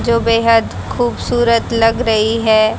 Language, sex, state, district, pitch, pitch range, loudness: Hindi, female, Haryana, Jhajjar, 230 Hz, 225-235 Hz, -14 LUFS